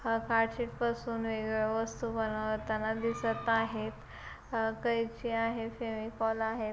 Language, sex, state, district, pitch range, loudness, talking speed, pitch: Marathi, female, Maharashtra, Chandrapur, 220-230 Hz, -33 LUFS, 105 wpm, 225 Hz